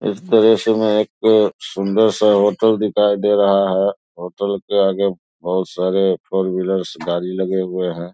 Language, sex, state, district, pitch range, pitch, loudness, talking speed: Hindi, male, Bihar, Saharsa, 95-105 Hz, 100 Hz, -17 LUFS, 160 wpm